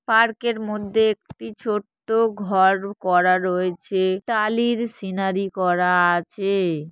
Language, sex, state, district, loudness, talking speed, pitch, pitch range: Bengali, female, West Bengal, Jhargram, -21 LUFS, 95 wpm, 195 Hz, 185-220 Hz